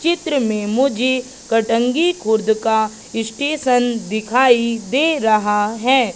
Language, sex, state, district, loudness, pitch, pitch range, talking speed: Hindi, female, Madhya Pradesh, Katni, -17 LUFS, 235 Hz, 220-265 Hz, 105 wpm